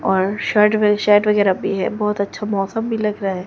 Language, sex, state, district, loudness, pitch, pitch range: Hindi, female, Chhattisgarh, Raipur, -18 LUFS, 205 Hz, 195-210 Hz